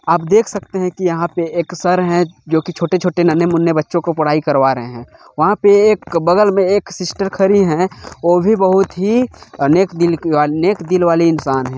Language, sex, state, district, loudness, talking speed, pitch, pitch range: Hindi, male, Chhattisgarh, Bilaspur, -15 LUFS, 205 wpm, 175 Hz, 165-190 Hz